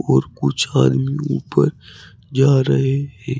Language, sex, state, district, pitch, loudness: Hindi, male, Uttar Pradesh, Saharanpur, 110 Hz, -18 LUFS